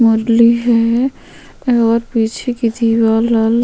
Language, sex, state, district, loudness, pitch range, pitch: Hindi, female, Chhattisgarh, Sukma, -14 LUFS, 225-235 Hz, 230 Hz